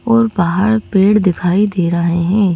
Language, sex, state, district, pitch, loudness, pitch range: Hindi, female, Madhya Pradesh, Bhopal, 190 Hz, -14 LUFS, 175-210 Hz